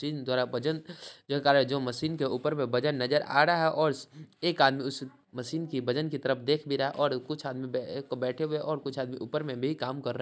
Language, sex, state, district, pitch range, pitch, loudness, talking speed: Hindi, male, Bihar, Sitamarhi, 130-150 Hz, 140 Hz, -30 LUFS, 245 wpm